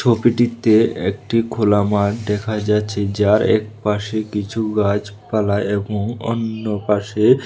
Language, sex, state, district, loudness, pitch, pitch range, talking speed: Bengali, male, Tripura, West Tripura, -19 LUFS, 105 Hz, 105-110 Hz, 115 wpm